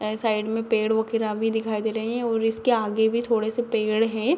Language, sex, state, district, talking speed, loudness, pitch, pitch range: Hindi, female, Bihar, East Champaran, 245 wpm, -24 LUFS, 225 Hz, 220-230 Hz